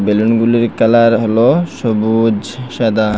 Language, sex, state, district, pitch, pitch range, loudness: Bengali, male, Assam, Hailakandi, 115 Hz, 110-115 Hz, -13 LUFS